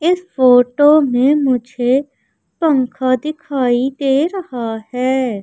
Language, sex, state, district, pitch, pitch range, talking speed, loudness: Hindi, female, Madhya Pradesh, Umaria, 265 Hz, 250-295 Hz, 100 wpm, -15 LUFS